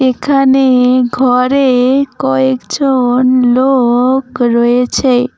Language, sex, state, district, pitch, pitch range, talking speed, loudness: Bengali, female, West Bengal, Cooch Behar, 255 Hz, 245-265 Hz, 55 wpm, -11 LUFS